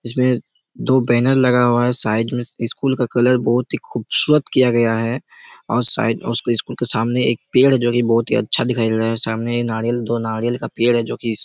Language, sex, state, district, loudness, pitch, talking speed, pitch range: Hindi, male, Chhattisgarh, Raigarh, -18 LUFS, 120 Hz, 230 wpm, 115-125 Hz